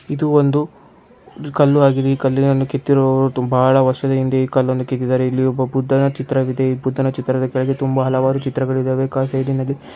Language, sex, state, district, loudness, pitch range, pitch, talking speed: Kannada, male, Karnataka, Chamarajanagar, -17 LUFS, 130-135 Hz, 135 Hz, 110 wpm